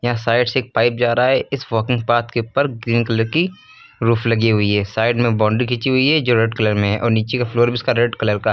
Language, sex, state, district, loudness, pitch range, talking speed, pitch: Hindi, male, Uttar Pradesh, Lucknow, -17 LUFS, 110-125 Hz, 280 wpm, 120 Hz